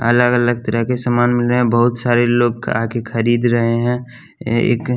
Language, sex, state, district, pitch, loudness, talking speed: Hindi, male, Bihar, West Champaran, 120 Hz, -16 LUFS, 215 wpm